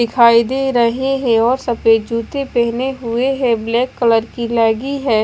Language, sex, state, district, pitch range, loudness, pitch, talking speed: Hindi, female, Bihar, West Champaran, 230-260 Hz, -15 LUFS, 235 Hz, 170 wpm